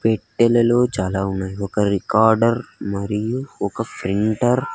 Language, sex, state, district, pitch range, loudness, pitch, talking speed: Telugu, male, Andhra Pradesh, Sri Satya Sai, 100-120 Hz, -20 LUFS, 110 Hz, 115 wpm